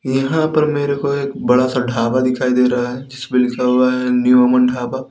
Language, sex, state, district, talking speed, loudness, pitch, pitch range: Hindi, male, Uttar Pradesh, Lalitpur, 225 wpm, -16 LUFS, 125 Hz, 125-135 Hz